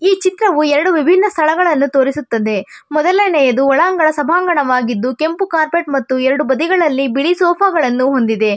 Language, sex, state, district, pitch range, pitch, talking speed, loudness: Kannada, female, Karnataka, Bangalore, 265-350 Hz, 300 Hz, 120 wpm, -14 LUFS